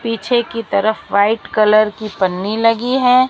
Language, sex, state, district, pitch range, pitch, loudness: Hindi, female, Maharashtra, Mumbai Suburban, 210-235 Hz, 220 Hz, -15 LUFS